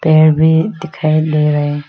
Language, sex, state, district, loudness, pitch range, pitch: Hindi, female, Arunachal Pradesh, Lower Dibang Valley, -13 LUFS, 150-160 Hz, 155 Hz